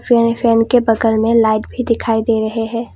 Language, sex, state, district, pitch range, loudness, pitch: Hindi, female, Assam, Kamrup Metropolitan, 225-230 Hz, -15 LUFS, 230 Hz